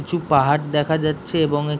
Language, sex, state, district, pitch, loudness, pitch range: Bengali, male, West Bengal, Jhargram, 150 Hz, -20 LUFS, 145-155 Hz